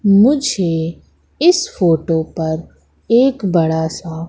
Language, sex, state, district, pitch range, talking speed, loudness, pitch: Hindi, female, Madhya Pradesh, Katni, 160-230 Hz, 100 wpm, -16 LUFS, 170 Hz